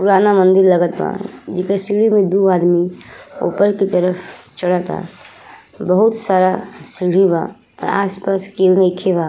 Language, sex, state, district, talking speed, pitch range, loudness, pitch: Bhojpuri, female, Uttar Pradesh, Ghazipur, 135 wpm, 180-195 Hz, -15 LUFS, 185 Hz